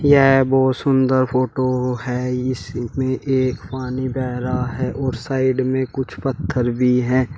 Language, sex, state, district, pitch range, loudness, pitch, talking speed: Hindi, male, Uttar Pradesh, Shamli, 125-130 Hz, -19 LUFS, 130 Hz, 155 wpm